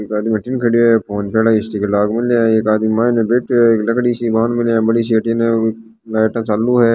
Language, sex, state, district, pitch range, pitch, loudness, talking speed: Hindi, male, Rajasthan, Nagaur, 110-115 Hz, 115 Hz, -15 LUFS, 240 wpm